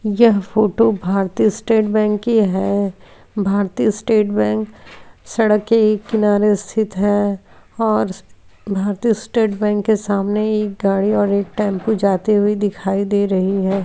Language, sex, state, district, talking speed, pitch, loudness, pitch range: Hindi, female, Bihar, Vaishali, 145 wpm, 205 Hz, -17 LUFS, 195-215 Hz